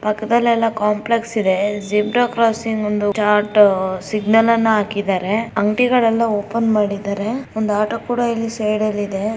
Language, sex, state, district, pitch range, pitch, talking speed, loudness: Kannada, female, Karnataka, Dharwad, 205-230 Hz, 215 Hz, 130 wpm, -17 LUFS